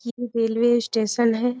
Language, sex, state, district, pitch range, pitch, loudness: Hindi, female, Bihar, Muzaffarpur, 225-240 Hz, 235 Hz, -22 LUFS